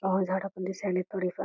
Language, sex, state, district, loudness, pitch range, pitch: Marathi, female, Karnataka, Belgaum, -31 LUFS, 185-195 Hz, 190 Hz